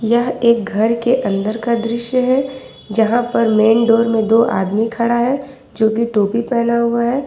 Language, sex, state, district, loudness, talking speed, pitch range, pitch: Hindi, female, Jharkhand, Ranchi, -16 LUFS, 190 wpm, 225-240 Hz, 235 Hz